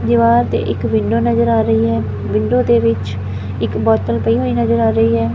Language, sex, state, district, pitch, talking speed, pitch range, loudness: Punjabi, female, Punjab, Fazilka, 115 Hz, 215 wpm, 110-115 Hz, -15 LUFS